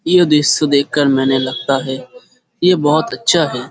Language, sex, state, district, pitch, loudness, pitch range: Bengali, male, West Bengal, Dakshin Dinajpur, 150 Hz, -14 LUFS, 135-175 Hz